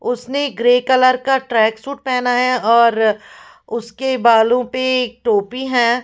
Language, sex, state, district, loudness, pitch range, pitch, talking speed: Hindi, female, Punjab, Pathankot, -16 LUFS, 235-260 Hz, 245 Hz, 150 wpm